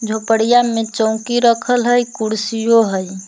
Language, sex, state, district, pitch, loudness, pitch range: Magahi, female, Jharkhand, Palamu, 225 Hz, -15 LUFS, 220-240 Hz